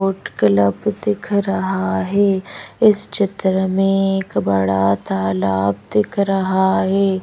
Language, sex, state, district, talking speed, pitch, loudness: Hindi, female, Madhya Pradesh, Bhopal, 115 wpm, 190 Hz, -17 LUFS